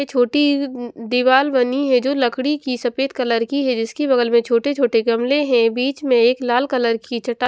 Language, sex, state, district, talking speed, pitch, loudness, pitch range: Hindi, female, Haryana, Jhajjar, 235 wpm, 250 Hz, -18 LUFS, 240-275 Hz